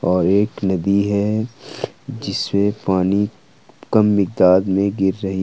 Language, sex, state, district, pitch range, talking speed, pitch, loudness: Hindi, male, Jharkhand, Ranchi, 95-105 Hz, 120 wpm, 100 Hz, -18 LUFS